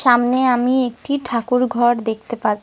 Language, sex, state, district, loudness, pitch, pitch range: Bengali, female, Jharkhand, Sahebganj, -18 LUFS, 245 Hz, 235-255 Hz